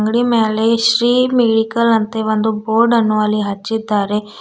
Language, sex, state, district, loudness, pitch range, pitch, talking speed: Kannada, female, Karnataka, Bidar, -15 LUFS, 215-230 Hz, 225 Hz, 135 wpm